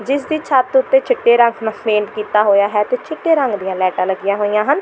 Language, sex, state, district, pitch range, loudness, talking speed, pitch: Punjabi, female, Delhi, New Delhi, 210-300 Hz, -15 LUFS, 235 wpm, 225 Hz